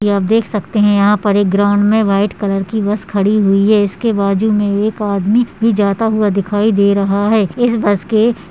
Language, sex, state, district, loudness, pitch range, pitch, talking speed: Hindi, female, Uttarakhand, Tehri Garhwal, -14 LUFS, 200-220 Hz, 205 Hz, 230 wpm